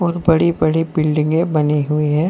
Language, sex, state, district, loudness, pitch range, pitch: Hindi, male, Jharkhand, Deoghar, -16 LUFS, 150-170 Hz, 155 Hz